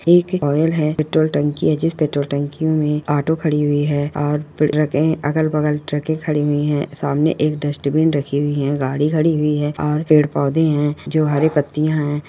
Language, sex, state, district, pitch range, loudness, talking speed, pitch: Hindi, female, Bihar, Purnia, 145-155 Hz, -18 LUFS, 190 wpm, 150 Hz